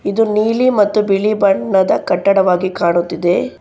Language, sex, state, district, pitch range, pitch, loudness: Kannada, female, Karnataka, Bangalore, 185-215 Hz, 200 Hz, -14 LUFS